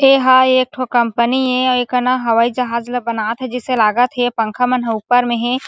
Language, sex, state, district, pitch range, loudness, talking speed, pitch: Chhattisgarhi, female, Chhattisgarh, Sarguja, 235-255 Hz, -15 LUFS, 180 wpm, 250 Hz